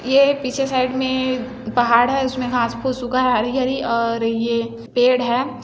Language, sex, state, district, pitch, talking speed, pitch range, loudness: Hindi, female, Chhattisgarh, Bilaspur, 250 Hz, 170 wpm, 235-260 Hz, -19 LUFS